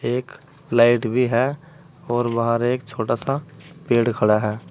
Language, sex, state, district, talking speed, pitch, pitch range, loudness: Hindi, male, Uttar Pradesh, Saharanpur, 150 wpm, 120 Hz, 115-145 Hz, -21 LUFS